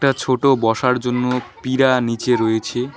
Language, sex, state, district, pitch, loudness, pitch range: Bengali, male, West Bengal, Alipurduar, 125 Hz, -18 LUFS, 120-130 Hz